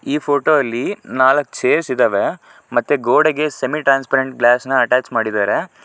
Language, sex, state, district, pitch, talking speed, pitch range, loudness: Kannada, male, Karnataka, Shimoga, 135 Hz, 135 wpm, 125-145 Hz, -16 LUFS